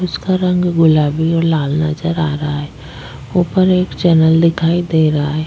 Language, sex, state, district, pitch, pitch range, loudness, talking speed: Hindi, female, Chhattisgarh, Jashpur, 165 Hz, 155-175 Hz, -14 LUFS, 175 wpm